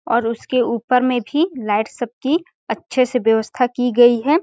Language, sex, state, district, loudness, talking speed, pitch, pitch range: Hindi, female, Chhattisgarh, Balrampur, -18 LUFS, 200 wpm, 245 Hz, 235-260 Hz